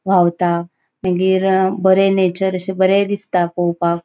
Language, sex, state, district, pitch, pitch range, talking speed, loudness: Konkani, female, Goa, North and South Goa, 190 Hz, 175-190 Hz, 135 wpm, -16 LUFS